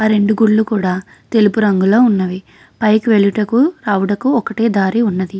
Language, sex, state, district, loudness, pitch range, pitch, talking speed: Telugu, female, Andhra Pradesh, Krishna, -14 LUFS, 195-225 Hz, 215 Hz, 145 wpm